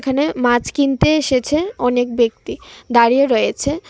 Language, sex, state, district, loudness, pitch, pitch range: Bengali, female, Tripura, West Tripura, -16 LUFS, 260 Hz, 240-290 Hz